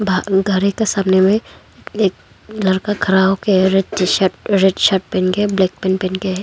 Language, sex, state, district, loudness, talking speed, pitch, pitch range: Hindi, female, Arunachal Pradesh, Longding, -16 LUFS, 225 wpm, 190 Hz, 190-200 Hz